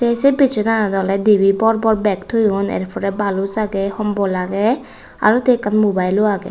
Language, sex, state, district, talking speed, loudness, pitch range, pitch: Chakma, female, Tripura, West Tripura, 185 wpm, -17 LUFS, 195-225 Hz, 210 Hz